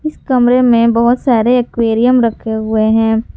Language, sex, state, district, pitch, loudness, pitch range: Hindi, female, Jharkhand, Garhwa, 235 Hz, -12 LUFS, 225-250 Hz